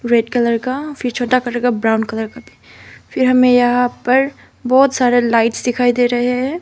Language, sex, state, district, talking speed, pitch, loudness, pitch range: Hindi, female, Arunachal Pradesh, Papum Pare, 180 wpm, 245 Hz, -15 LUFS, 240-255 Hz